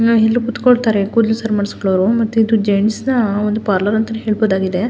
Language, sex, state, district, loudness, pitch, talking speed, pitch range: Kannada, female, Karnataka, Mysore, -15 LUFS, 220 Hz, 170 wpm, 205-230 Hz